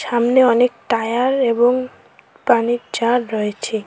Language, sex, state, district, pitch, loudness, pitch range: Bengali, female, West Bengal, Cooch Behar, 240 Hz, -17 LUFS, 230-250 Hz